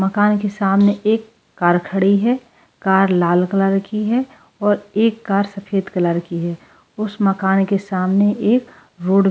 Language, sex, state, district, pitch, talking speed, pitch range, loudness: Hindi, female, Goa, North and South Goa, 195 Hz, 165 wpm, 190-210 Hz, -18 LUFS